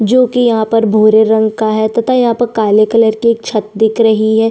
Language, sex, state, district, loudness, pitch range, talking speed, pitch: Hindi, female, Chhattisgarh, Sukma, -11 LUFS, 220-230 Hz, 240 wpm, 220 Hz